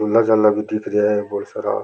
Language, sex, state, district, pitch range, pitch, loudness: Rajasthani, male, Rajasthan, Churu, 105-110 Hz, 105 Hz, -18 LUFS